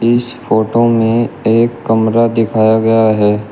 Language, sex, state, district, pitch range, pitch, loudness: Hindi, male, Uttar Pradesh, Shamli, 110-115 Hz, 115 Hz, -12 LUFS